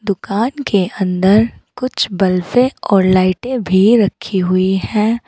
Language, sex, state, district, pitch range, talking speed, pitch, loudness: Hindi, female, Uttar Pradesh, Saharanpur, 185-235 Hz, 125 wpm, 200 Hz, -15 LUFS